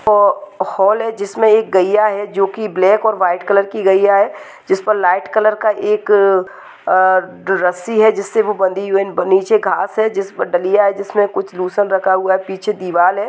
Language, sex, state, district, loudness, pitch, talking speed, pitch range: Hindi, female, Maharashtra, Nagpur, -15 LUFS, 200 Hz, 205 wpm, 190-210 Hz